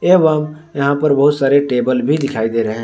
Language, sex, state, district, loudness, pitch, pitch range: Hindi, male, Jharkhand, Ranchi, -15 LUFS, 140 Hz, 125-150 Hz